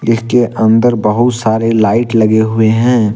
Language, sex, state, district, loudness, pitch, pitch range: Hindi, male, Jharkhand, Deoghar, -11 LUFS, 115 Hz, 110-120 Hz